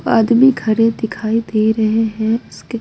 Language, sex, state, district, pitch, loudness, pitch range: Hindi, female, Bihar, Patna, 225 Hz, -15 LUFS, 220-230 Hz